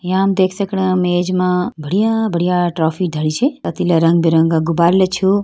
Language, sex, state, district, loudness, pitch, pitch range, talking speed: Hindi, female, Uttarakhand, Uttarkashi, -16 LUFS, 180 Hz, 170-190 Hz, 185 wpm